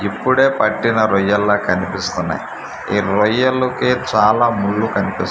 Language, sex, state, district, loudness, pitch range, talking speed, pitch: Telugu, male, Andhra Pradesh, Manyam, -16 LUFS, 100-120 Hz, 115 wpm, 110 Hz